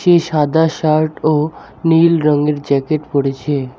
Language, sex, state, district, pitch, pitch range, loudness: Bengali, male, West Bengal, Alipurduar, 155 Hz, 145-160 Hz, -15 LUFS